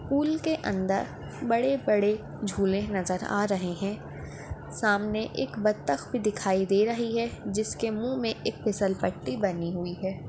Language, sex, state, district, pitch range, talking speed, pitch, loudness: Hindi, female, Maharashtra, Dhule, 195-225 Hz, 150 wpm, 205 Hz, -28 LUFS